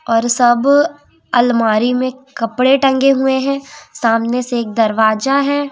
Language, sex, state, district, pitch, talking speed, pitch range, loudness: Hindi, female, Madhya Pradesh, Umaria, 255 Hz, 135 wpm, 230-275 Hz, -14 LUFS